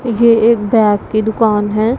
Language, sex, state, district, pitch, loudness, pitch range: Hindi, female, Punjab, Pathankot, 225 Hz, -12 LUFS, 215-230 Hz